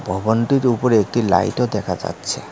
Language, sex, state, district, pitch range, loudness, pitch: Bengali, male, West Bengal, Cooch Behar, 95-120 Hz, -19 LUFS, 110 Hz